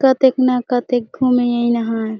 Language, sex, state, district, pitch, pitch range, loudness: Chhattisgarhi, female, Chhattisgarh, Jashpur, 245 Hz, 235-255 Hz, -17 LUFS